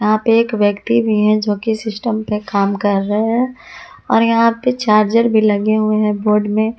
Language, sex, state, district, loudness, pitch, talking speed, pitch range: Hindi, female, Jharkhand, Palamu, -15 LUFS, 215 Hz, 210 wpm, 210-230 Hz